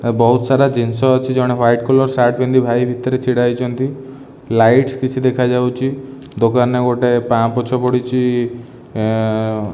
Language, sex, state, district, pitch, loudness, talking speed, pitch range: Odia, male, Odisha, Khordha, 125 Hz, -15 LUFS, 125 wpm, 120-130 Hz